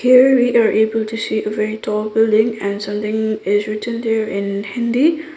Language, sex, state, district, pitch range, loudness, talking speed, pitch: English, female, Sikkim, Gangtok, 210-230 Hz, -17 LUFS, 190 wpm, 220 Hz